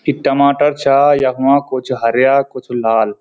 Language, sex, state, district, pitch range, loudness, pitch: Garhwali, male, Uttarakhand, Uttarkashi, 125-140 Hz, -14 LUFS, 135 Hz